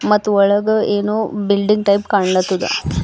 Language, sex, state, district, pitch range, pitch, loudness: Kannada, female, Karnataka, Bidar, 200-210 Hz, 205 Hz, -16 LUFS